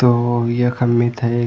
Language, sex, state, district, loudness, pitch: Garhwali, male, Uttarakhand, Tehri Garhwal, -17 LUFS, 120 Hz